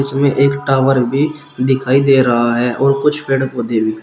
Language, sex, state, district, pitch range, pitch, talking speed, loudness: Hindi, male, Uttar Pradesh, Shamli, 125-140 Hz, 135 Hz, 195 wpm, -14 LUFS